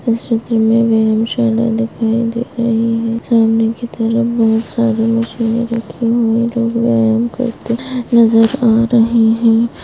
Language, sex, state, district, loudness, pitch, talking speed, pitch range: Hindi, female, Maharashtra, Solapur, -14 LUFS, 230 Hz, 140 wpm, 225-235 Hz